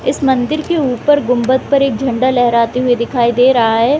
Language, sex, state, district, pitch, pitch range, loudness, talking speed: Hindi, female, Bihar, Gopalganj, 255 Hz, 240-275 Hz, -13 LUFS, 210 wpm